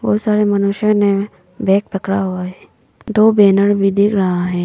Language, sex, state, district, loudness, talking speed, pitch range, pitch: Hindi, female, Arunachal Pradesh, Papum Pare, -15 LUFS, 180 wpm, 190-210 Hz, 200 Hz